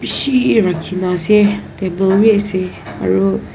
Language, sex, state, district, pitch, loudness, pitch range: Nagamese, female, Nagaland, Kohima, 185 Hz, -14 LUFS, 170-205 Hz